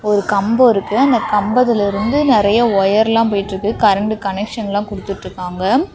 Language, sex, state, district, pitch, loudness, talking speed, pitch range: Tamil, female, Tamil Nadu, Namakkal, 210 Hz, -15 LUFS, 120 wpm, 200-230 Hz